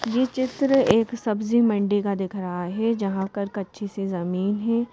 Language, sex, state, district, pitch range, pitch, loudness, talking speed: Hindi, female, Madhya Pradesh, Bhopal, 195-235 Hz, 205 Hz, -24 LUFS, 185 wpm